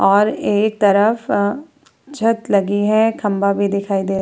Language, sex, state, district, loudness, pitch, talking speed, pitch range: Hindi, female, Uttar Pradesh, Muzaffarnagar, -17 LUFS, 205 Hz, 170 wpm, 200-225 Hz